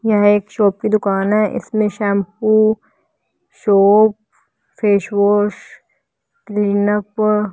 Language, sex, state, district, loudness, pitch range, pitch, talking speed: Hindi, female, Haryana, Jhajjar, -16 LUFS, 205-215 Hz, 210 Hz, 95 wpm